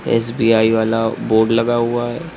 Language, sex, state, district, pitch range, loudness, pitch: Hindi, male, Uttar Pradesh, Lucknow, 115-120 Hz, -16 LUFS, 115 Hz